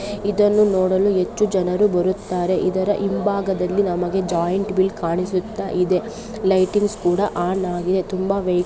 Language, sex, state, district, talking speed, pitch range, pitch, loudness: Kannada, female, Karnataka, Dakshina Kannada, 120 wpm, 180-205 Hz, 190 Hz, -20 LUFS